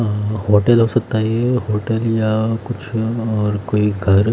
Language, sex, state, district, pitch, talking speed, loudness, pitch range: Hindi, male, Himachal Pradesh, Shimla, 110 Hz, 165 wpm, -18 LUFS, 105-115 Hz